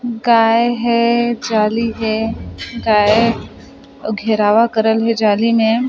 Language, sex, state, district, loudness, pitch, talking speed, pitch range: Chhattisgarhi, female, Chhattisgarh, Sarguja, -15 LUFS, 225 Hz, 100 wpm, 220-235 Hz